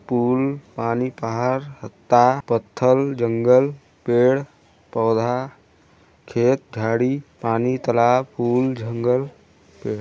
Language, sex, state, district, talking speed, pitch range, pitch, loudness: Hindi, male, Chhattisgarh, Sarguja, 90 wpm, 115-130 Hz, 120 Hz, -20 LUFS